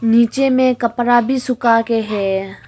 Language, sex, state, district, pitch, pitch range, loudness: Hindi, female, Arunachal Pradesh, Longding, 235 Hz, 230-255 Hz, -16 LUFS